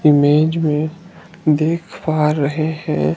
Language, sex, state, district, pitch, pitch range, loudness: Hindi, male, Himachal Pradesh, Shimla, 155 Hz, 150-160 Hz, -17 LUFS